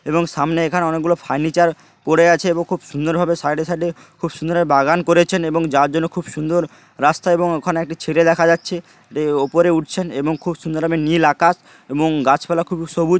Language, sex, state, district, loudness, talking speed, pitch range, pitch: Bengali, male, West Bengal, Paschim Medinipur, -18 LUFS, 190 wpm, 155-175 Hz, 165 Hz